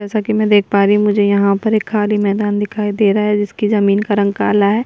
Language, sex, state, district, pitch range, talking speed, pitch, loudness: Hindi, female, Bihar, Kishanganj, 200-210 Hz, 285 wpm, 205 Hz, -15 LUFS